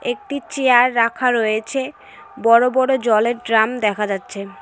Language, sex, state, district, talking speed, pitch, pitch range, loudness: Bengali, female, West Bengal, Cooch Behar, 130 wpm, 240 Hz, 220-260 Hz, -17 LUFS